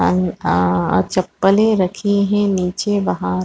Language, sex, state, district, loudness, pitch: Hindi, female, Chhattisgarh, Raigarh, -17 LUFS, 185 Hz